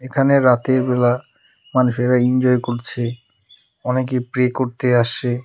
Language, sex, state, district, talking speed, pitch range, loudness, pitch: Bengali, male, West Bengal, Alipurduar, 120 wpm, 120-130 Hz, -18 LUFS, 125 Hz